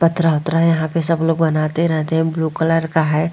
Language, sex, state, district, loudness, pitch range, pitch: Hindi, female, Bihar, Vaishali, -17 LUFS, 160-165 Hz, 160 Hz